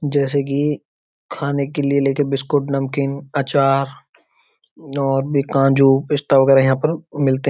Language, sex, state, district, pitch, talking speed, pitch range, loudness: Hindi, male, Uttar Pradesh, Budaun, 140 Hz, 145 wpm, 135-145 Hz, -18 LUFS